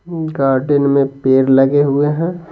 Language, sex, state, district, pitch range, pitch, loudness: Hindi, male, Bihar, Patna, 135-160 Hz, 140 Hz, -14 LUFS